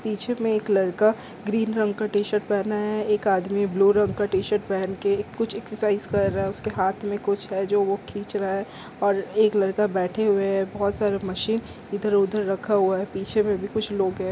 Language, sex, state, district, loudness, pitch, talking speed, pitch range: Hindi, female, Chhattisgarh, Rajnandgaon, -24 LUFS, 205 Hz, 230 wpm, 195-215 Hz